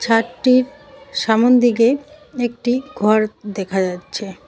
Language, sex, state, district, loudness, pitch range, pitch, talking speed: Bengali, female, West Bengal, Cooch Behar, -18 LUFS, 210-255 Hz, 235 Hz, 80 wpm